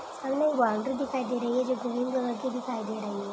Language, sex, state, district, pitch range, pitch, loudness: Hindi, female, Chhattisgarh, Kabirdham, 235-260 Hz, 250 Hz, -29 LUFS